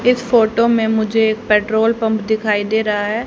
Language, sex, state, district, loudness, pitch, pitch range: Hindi, female, Haryana, Rohtak, -16 LUFS, 220 Hz, 215-230 Hz